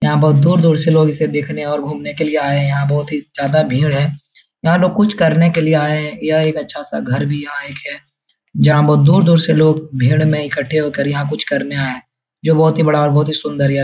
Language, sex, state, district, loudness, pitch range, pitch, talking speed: Hindi, male, Bihar, Jahanabad, -15 LUFS, 145-155 Hz, 150 Hz, 255 wpm